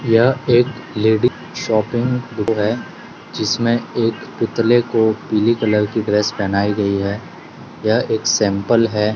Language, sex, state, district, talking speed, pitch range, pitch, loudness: Hindi, male, Gujarat, Gandhinagar, 130 wpm, 105-120 Hz, 110 Hz, -18 LUFS